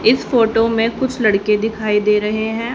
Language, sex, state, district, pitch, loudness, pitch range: Hindi, female, Haryana, Rohtak, 225 Hz, -16 LUFS, 210-230 Hz